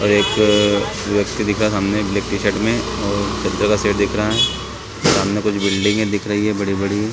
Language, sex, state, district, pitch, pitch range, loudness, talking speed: Hindi, male, Chhattisgarh, Raigarh, 105 Hz, 100-105 Hz, -18 LUFS, 210 wpm